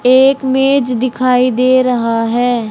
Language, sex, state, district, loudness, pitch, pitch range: Hindi, male, Haryana, Rohtak, -12 LUFS, 255 Hz, 245-260 Hz